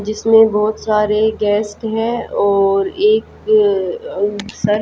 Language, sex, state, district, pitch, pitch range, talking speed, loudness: Hindi, female, Haryana, Jhajjar, 215 Hz, 210-235 Hz, 135 wpm, -15 LUFS